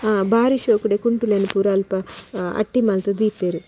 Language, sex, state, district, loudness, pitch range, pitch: Tulu, female, Karnataka, Dakshina Kannada, -20 LUFS, 195-225 Hz, 205 Hz